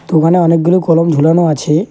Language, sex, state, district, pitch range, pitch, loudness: Bengali, male, West Bengal, Alipurduar, 160-175 Hz, 165 Hz, -11 LUFS